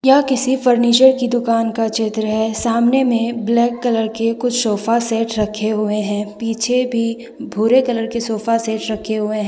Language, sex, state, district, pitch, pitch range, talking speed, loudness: Hindi, female, Jharkhand, Deoghar, 230 Hz, 220-240 Hz, 185 wpm, -17 LUFS